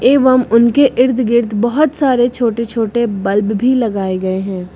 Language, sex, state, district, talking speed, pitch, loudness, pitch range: Hindi, female, Uttar Pradesh, Lucknow, 165 wpm, 235 Hz, -14 LUFS, 210-255 Hz